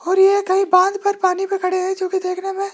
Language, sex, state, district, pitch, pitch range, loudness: Hindi, male, Rajasthan, Jaipur, 380 Hz, 370-390 Hz, -18 LUFS